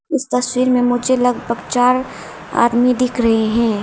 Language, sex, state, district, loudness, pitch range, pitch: Hindi, female, Arunachal Pradesh, Lower Dibang Valley, -16 LUFS, 235-255 Hz, 245 Hz